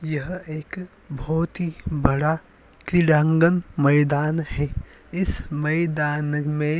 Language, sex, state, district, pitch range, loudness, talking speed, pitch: Hindi, male, Uttar Pradesh, Varanasi, 150-165 Hz, -23 LUFS, 105 wpm, 155 Hz